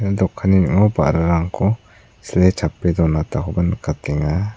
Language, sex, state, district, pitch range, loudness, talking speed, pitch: Garo, male, Meghalaya, South Garo Hills, 85-100 Hz, -18 LUFS, 90 wpm, 90 Hz